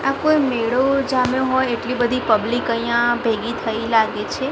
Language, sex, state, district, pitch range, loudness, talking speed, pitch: Gujarati, female, Gujarat, Gandhinagar, 230-260 Hz, -19 LUFS, 170 wpm, 240 Hz